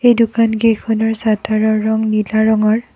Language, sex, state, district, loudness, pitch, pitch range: Assamese, female, Assam, Kamrup Metropolitan, -15 LUFS, 220 Hz, 215-225 Hz